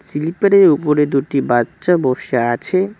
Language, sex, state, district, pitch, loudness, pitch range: Bengali, male, West Bengal, Cooch Behar, 150 Hz, -15 LUFS, 130-180 Hz